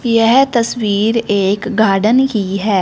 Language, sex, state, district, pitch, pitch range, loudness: Hindi, female, Punjab, Fazilka, 220 Hz, 200-235 Hz, -14 LUFS